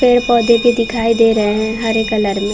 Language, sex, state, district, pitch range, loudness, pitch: Hindi, female, Chhattisgarh, Balrampur, 215-235 Hz, -14 LUFS, 225 Hz